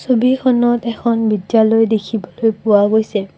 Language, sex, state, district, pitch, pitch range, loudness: Assamese, female, Assam, Kamrup Metropolitan, 225 Hz, 210-235 Hz, -15 LUFS